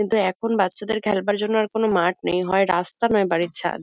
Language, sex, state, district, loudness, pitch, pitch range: Bengali, female, West Bengal, Kolkata, -21 LUFS, 200 Hz, 180-215 Hz